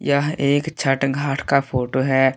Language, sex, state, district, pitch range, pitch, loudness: Hindi, male, Jharkhand, Deoghar, 135-140 Hz, 140 Hz, -20 LUFS